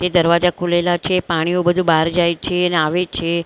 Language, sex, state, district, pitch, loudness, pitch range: Gujarati, female, Maharashtra, Mumbai Suburban, 175 Hz, -17 LUFS, 170-180 Hz